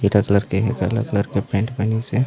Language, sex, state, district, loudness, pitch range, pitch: Chhattisgarhi, male, Chhattisgarh, Raigarh, -20 LUFS, 100-115 Hz, 100 Hz